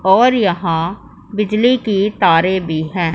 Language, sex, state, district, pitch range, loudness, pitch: Hindi, female, Punjab, Pathankot, 165-210 Hz, -15 LUFS, 190 Hz